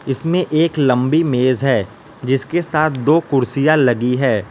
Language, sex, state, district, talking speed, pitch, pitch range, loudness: Hindi, male, Gujarat, Valsad, 145 wpm, 135 Hz, 130-155 Hz, -16 LUFS